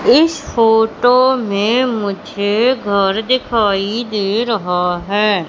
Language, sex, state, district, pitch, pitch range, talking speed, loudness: Hindi, female, Madhya Pradesh, Katni, 215 Hz, 200-240 Hz, 100 wpm, -15 LUFS